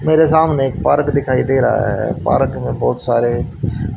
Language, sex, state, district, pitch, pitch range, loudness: Hindi, male, Haryana, Charkhi Dadri, 135 Hz, 120-145 Hz, -16 LUFS